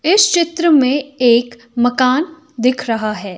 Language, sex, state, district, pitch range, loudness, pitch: Hindi, female, Himachal Pradesh, Shimla, 240-315 Hz, -15 LUFS, 255 Hz